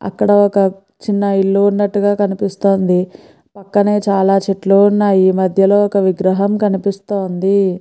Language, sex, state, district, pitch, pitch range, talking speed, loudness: Telugu, female, Andhra Pradesh, Guntur, 200 Hz, 195-205 Hz, 110 wpm, -14 LUFS